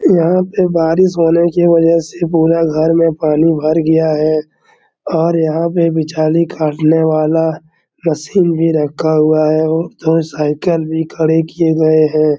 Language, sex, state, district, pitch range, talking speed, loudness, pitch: Hindi, male, Bihar, Araria, 155-165 Hz, 155 wpm, -13 LUFS, 160 Hz